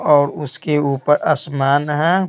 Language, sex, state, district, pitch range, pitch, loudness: Hindi, male, Bihar, Patna, 140-150 Hz, 150 Hz, -17 LUFS